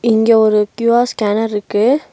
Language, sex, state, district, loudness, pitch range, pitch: Tamil, female, Tamil Nadu, Nilgiris, -14 LUFS, 210-235 Hz, 220 Hz